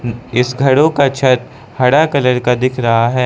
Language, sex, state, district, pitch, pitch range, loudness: Hindi, male, Arunachal Pradesh, Lower Dibang Valley, 125 Hz, 125-135 Hz, -13 LUFS